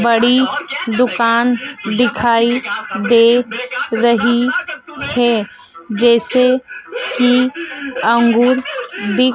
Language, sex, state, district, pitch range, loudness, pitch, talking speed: Hindi, female, Madhya Pradesh, Dhar, 230-255 Hz, -15 LUFS, 240 Hz, 65 wpm